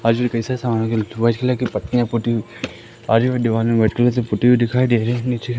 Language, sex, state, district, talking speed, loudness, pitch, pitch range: Hindi, male, Madhya Pradesh, Katni, 105 wpm, -18 LUFS, 120 Hz, 115-125 Hz